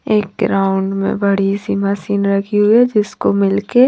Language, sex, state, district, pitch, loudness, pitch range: Hindi, female, Haryana, Charkhi Dadri, 200 Hz, -15 LUFS, 195-210 Hz